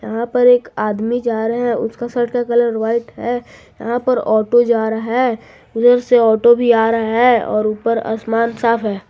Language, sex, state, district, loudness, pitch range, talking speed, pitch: Hindi, female, Jharkhand, Garhwa, -16 LUFS, 225-240 Hz, 205 wpm, 230 Hz